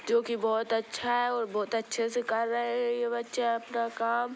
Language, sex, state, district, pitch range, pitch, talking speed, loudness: Bhojpuri, female, Bihar, Gopalganj, 225-240 Hz, 235 Hz, 190 wpm, -30 LUFS